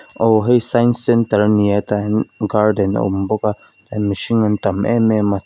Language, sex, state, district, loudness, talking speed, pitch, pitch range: Mizo, female, Mizoram, Aizawl, -16 LUFS, 220 wpm, 105 Hz, 100-115 Hz